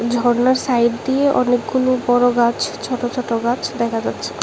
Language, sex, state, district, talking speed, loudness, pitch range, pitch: Bengali, female, Tripura, West Tripura, 150 wpm, -18 LUFS, 235-255 Hz, 245 Hz